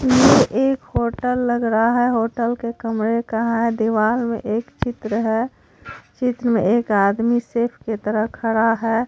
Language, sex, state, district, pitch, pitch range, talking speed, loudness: Hindi, female, Bihar, Katihar, 230 Hz, 225-240 Hz, 165 wpm, -19 LUFS